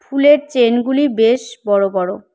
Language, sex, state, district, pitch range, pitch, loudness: Bengali, female, West Bengal, Cooch Behar, 220-280 Hz, 240 Hz, -15 LUFS